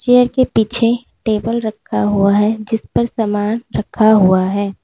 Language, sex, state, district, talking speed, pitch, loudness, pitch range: Hindi, female, Uttar Pradesh, Lalitpur, 160 wpm, 220 Hz, -15 LUFS, 205-235 Hz